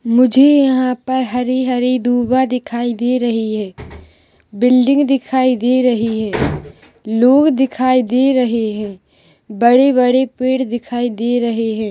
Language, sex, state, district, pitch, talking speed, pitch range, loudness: Hindi, female, Chhattisgarh, Rajnandgaon, 245 Hz, 125 wpm, 230-255 Hz, -15 LUFS